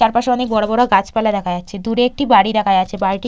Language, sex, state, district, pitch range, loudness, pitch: Bengali, female, West Bengal, Purulia, 195-245 Hz, -16 LUFS, 215 Hz